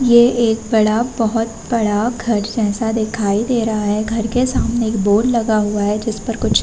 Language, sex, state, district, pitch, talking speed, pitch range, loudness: Hindi, female, Uttar Pradesh, Varanasi, 225 Hz, 210 wpm, 215-235 Hz, -17 LUFS